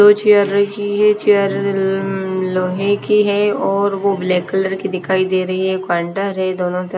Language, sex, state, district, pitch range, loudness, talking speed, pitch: Hindi, female, Haryana, Charkhi Dadri, 185-200 Hz, -16 LUFS, 170 wpm, 195 Hz